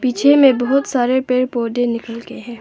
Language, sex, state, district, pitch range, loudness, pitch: Hindi, female, Arunachal Pradesh, Longding, 235-265 Hz, -16 LUFS, 250 Hz